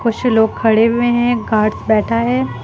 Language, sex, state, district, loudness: Hindi, female, Uttar Pradesh, Lucknow, -15 LUFS